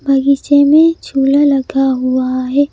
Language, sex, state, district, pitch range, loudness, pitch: Hindi, female, Madhya Pradesh, Bhopal, 265-285 Hz, -12 LUFS, 275 Hz